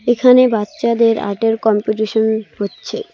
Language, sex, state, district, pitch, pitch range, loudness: Bengali, female, West Bengal, Cooch Behar, 220 Hz, 215-235 Hz, -15 LUFS